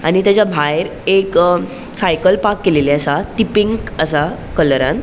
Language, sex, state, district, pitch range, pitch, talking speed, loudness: Konkani, female, Goa, North and South Goa, 160-210 Hz, 195 Hz, 165 wpm, -15 LUFS